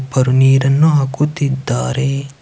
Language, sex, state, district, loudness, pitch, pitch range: Kannada, male, Karnataka, Chamarajanagar, -14 LUFS, 135 Hz, 130-140 Hz